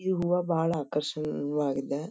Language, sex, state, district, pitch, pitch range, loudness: Kannada, female, Karnataka, Dharwad, 155 Hz, 150-175 Hz, -29 LUFS